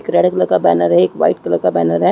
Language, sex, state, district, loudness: Hindi, female, Chhattisgarh, Rajnandgaon, -14 LUFS